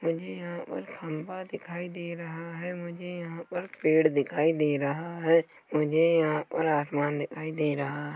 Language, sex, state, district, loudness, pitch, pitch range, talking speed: Hindi, male, Chhattisgarh, Korba, -29 LUFS, 165 Hz, 150-170 Hz, 175 wpm